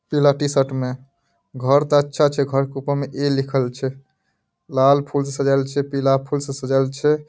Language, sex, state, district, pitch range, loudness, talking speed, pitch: Maithili, male, Bihar, Madhepura, 135-145 Hz, -20 LUFS, 215 wpm, 140 Hz